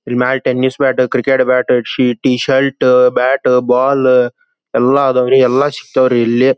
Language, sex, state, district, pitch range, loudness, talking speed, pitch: Kannada, male, Karnataka, Belgaum, 125-135 Hz, -12 LUFS, 120 wpm, 130 Hz